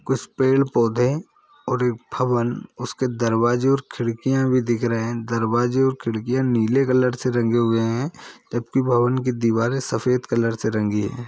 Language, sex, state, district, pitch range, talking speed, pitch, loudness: Hindi, male, Bihar, Saran, 115-130 Hz, 170 wpm, 120 Hz, -21 LUFS